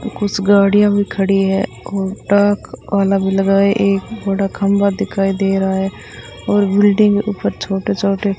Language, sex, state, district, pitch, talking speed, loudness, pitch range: Hindi, female, Rajasthan, Bikaner, 200 Hz, 165 wpm, -15 LUFS, 195-205 Hz